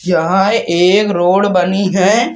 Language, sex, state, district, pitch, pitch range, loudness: Hindi, male, Andhra Pradesh, Krishna, 190 Hz, 180-200 Hz, -12 LUFS